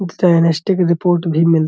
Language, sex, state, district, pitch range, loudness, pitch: Hindi, male, Uttar Pradesh, Budaun, 165-180 Hz, -15 LUFS, 170 Hz